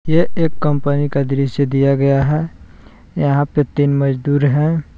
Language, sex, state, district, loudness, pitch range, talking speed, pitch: Hindi, male, Jharkhand, Palamu, -16 LUFS, 140-150 Hz, 155 wpm, 145 Hz